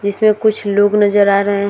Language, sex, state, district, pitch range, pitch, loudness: Hindi, female, Uttar Pradesh, Muzaffarnagar, 200-210 Hz, 205 Hz, -13 LUFS